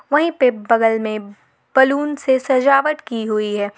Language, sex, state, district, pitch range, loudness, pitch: Hindi, female, Jharkhand, Garhwa, 215-275 Hz, -17 LUFS, 250 Hz